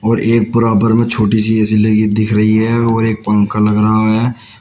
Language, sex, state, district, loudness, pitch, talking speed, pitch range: Hindi, male, Uttar Pradesh, Shamli, -12 LUFS, 110 Hz, 220 wpm, 105-115 Hz